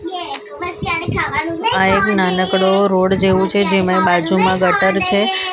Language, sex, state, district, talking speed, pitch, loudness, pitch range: Gujarati, female, Maharashtra, Mumbai Suburban, 140 wpm, 190 Hz, -15 LUFS, 185-200 Hz